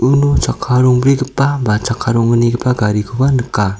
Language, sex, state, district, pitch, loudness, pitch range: Garo, male, Meghalaya, South Garo Hills, 125 Hz, -14 LUFS, 115-130 Hz